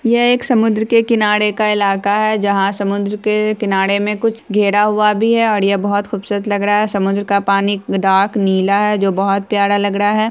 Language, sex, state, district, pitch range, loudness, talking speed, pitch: Hindi, female, Bihar, Saharsa, 200-215 Hz, -15 LUFS, 215 wpm, 205 Hz